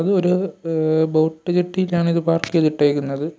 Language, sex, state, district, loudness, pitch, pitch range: Malayalam, male, Kerala, Kollam, -19 LUFS, 165 Hz, 155-180 Hz